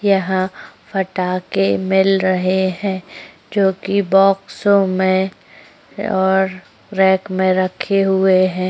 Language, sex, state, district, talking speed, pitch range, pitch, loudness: Hindi, female, Uttar Pradesh, Jyotiba Phule Nagar, 95 wpm, 185-195 Hz, 190 Hz, -17 LUFS